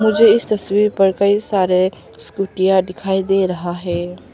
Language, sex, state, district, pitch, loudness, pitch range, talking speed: Hindi, female, Arunachal Pradesh, Papum Pare, 190 Hz, -16 LUFS, 185-205 Hz, 150 wpm